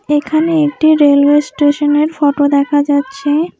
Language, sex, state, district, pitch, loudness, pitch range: Bengali, female, West Bengal, Alipurduar, 290 Hz, -12 LUFS, 290-305 Hz